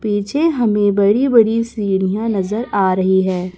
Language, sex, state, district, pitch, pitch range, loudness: Hindi, male, Chhattisgarh, Raipur, 205 Hz, 190-230 Hz, -16 LUFS